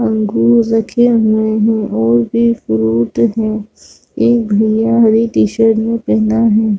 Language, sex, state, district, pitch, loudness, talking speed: Hindi, female, Chhattisgarh, Raigarh, 220 Hz, -13 LUFS, 140 wpm